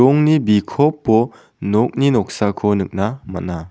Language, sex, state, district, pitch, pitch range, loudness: Garo, male, Meghalaya, South Garo Hills, 110 Hz, 100-135 Hz, -17 LUFS